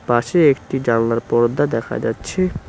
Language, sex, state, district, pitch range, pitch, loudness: Bengali, male, West Bengal, Cooch Behar, 115-145 Hz, 120 Hz, -18 LUFS